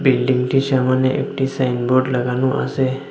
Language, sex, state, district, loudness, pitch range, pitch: Bengali, male, Assam, Hailakandi, -18 LUFS, 130-135 Hz, 130 Hz